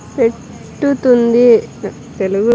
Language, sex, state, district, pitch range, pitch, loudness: Telugu, female, Andhra Pradesh, Sri Satya Sai, 230-250 Hz, 235 Hz, -13 LUFS